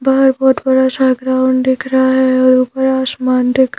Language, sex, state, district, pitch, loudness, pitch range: Hindi, female, Madhya Pradesh, Bhopal, 260 Hz, -13 LUFS, 255-265 Hz